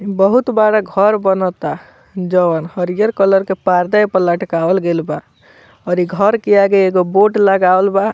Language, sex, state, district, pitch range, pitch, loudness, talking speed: Bhojpuri, male, Bihar, Muzaffarpur, 180-205 Hz, 195 Hz, -14 LUFS, 175 wpm